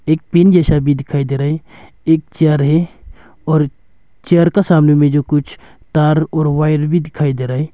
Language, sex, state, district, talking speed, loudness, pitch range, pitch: Hindi, male, Arunachal Pradesh, Longding, 200 wpm, -14 LUFS, 145-160 Hz, 150 Hz